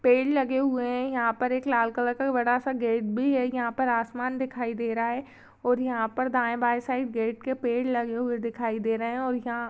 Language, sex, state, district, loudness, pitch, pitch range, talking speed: Hindi, female, Chhattisgarh, Rajnandgaon, -27 LUFS, 245 Hz, 235-255 Hz, 235 wpm